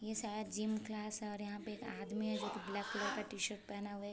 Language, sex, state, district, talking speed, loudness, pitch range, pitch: Hindi, female, Bihar, Sitamarhi, 305 wpm, -42 LUFS, 205-215 Hz, 210 Hz